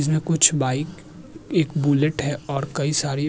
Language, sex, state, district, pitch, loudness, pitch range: Hindi, male, Uttarakhand, Tehri Garhwal, 150 Hz, -21 LUFS, 145-155 Hz